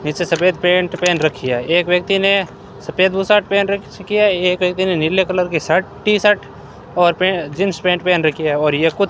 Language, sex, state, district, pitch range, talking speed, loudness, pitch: Hindi, male, Rajasthan, Bikaner, 160-195 Hz, 210 wpm, -16 LUFS, 180 Hz